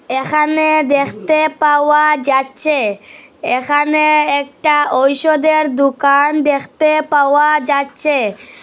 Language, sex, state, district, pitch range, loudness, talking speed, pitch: Bengali, female, Assam, Hailakandi, 280-305 Hz, -13 LUFS, 75 wpm, 295 Hz